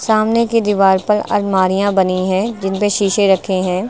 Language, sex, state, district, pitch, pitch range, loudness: Hindi, female, Uttar Pradesh, Lucknow, 200 Hz, 190-210 Hz, -15 LUFS